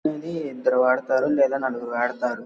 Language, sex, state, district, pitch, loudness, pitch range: Telugu, male, Andhra Pradesh, Guntur, 130 Hz, -23 LUFS, 125-140 Hz